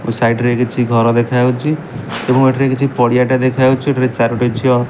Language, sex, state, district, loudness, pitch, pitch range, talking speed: Odia, male, Odisha, Malkangiri, -14 LUFS, 125 Hz, 120-130 Hz, 185 wpm